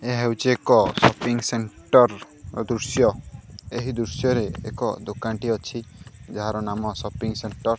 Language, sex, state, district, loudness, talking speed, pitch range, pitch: Odia, male, Odisha, Khordha, -23 LUFS, 145 wpm, 110-120 Hz, 115 Hz